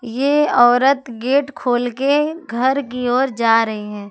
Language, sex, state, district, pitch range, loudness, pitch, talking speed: Hindi, female, Jharkhand, Ranchi, 235-275 Hz, -17 LUFS, 250 Hz, 160 wpm